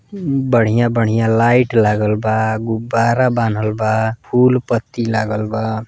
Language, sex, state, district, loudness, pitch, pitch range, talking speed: Bhojpuri, male, Uttar Pradesh, Deoria, -16 LUFS, 115 Hz, 110-120 Hz, 120 wpm